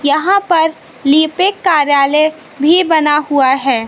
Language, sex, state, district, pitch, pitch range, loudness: Hindi, female, Madhya Pradesh, Katni, 305 Hz, 285-325 Hz, -12 LUFS